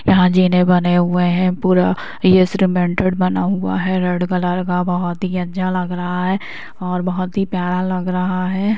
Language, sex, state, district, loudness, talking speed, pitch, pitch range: Hindi, female, Bihar, East Champaran, -17 LUFS, 185 wpm, 180 Hz, 180-185 Hz